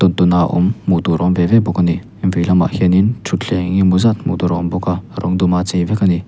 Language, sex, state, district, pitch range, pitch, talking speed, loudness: Mizo, male, Mizoram, Aizawl, 90-95 Hz, 90 Hz, 275 wpm, -15 LUFS